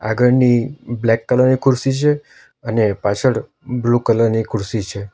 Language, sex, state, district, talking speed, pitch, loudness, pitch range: Gujarati, male, Gujarat, Valsad, 150 wpm, 120 Hz, -17 LUFS, 110-130 Hz